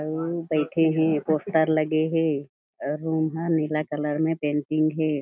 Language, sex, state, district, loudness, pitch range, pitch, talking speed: Chhattisgarhi, female, Chhattisgarh, Jashpur, -24 LUFS, 150-160 Hz, 155 Hz, 150 wpm